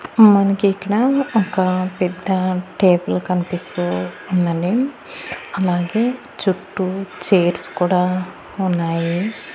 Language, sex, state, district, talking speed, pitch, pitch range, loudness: Telugu, female, Andhra Pradesh, Annamaya, 75 wpm, 185 Hz, 180-200 Hz, -19 LUFS